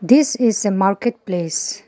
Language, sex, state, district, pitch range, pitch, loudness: English, female, Arunachal Pradesh, Lower Dibang Valley, 195-240 Hz, 205 Hz, -18 LUFS